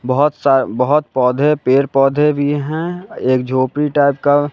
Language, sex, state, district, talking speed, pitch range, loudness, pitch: Hindi, male, Bihar, West Champaran, 160 wpm, 130-150 Hz, -15 LUFS, 145 Hz